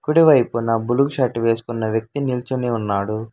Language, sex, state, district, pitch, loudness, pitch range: Telugu, male, Telangana, Hyderabad, 115 Hz, -19 LUFS, 110-130 Hz